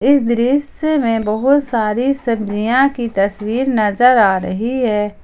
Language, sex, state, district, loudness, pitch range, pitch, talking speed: Hindi, female, Jharkhand, Ranchi, -15 LUFS, 210-265 Hz, 235 Hz, 135 wpm